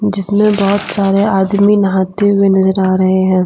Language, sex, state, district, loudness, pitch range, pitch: Hindi, female, Jharkhand, Deoghar, -12 LUFS, 190-205 Hz, 195 Hz